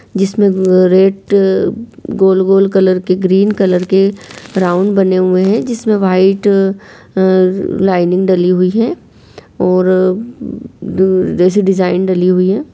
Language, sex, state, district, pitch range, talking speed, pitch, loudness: Hindi, female, Jharkhand, Sahebganj, 185-200 Hz, 115 wpm, 190 Hz, -12 LUFS